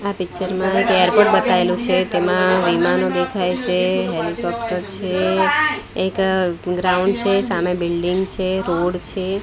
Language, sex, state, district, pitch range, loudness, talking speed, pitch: Gujarati, female, Gujarat, Gandhinagar, 175-190 Hz, -18 LUFS, 135 wpm, 185 Hz